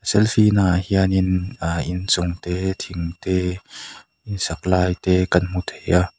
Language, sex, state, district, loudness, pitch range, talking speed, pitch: Mizo, male, Mizoram, Aizawl, -20 LUFS, 90-95 Hz, 105 wpm, 90 Hz